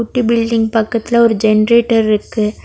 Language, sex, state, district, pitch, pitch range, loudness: Tamil, female, Tamil Nadu, Nilgiris, 230 Hz, 220-235 Hz, -13 LUFS